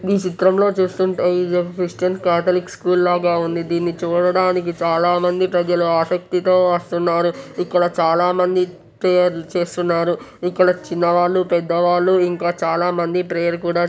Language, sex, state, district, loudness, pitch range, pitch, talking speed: Telugu, male, Telangana, Nalgonda, -18 LUFS, 170-180 Hz, 175 Hz, 115 wpm